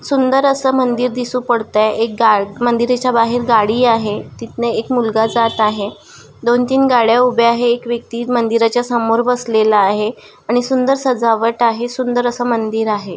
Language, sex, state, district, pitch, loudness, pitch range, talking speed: Marathi, female, Maharashtra, Nagpur, 235 Hz, -15 LUFS, 225-245 Hz, 170 wpm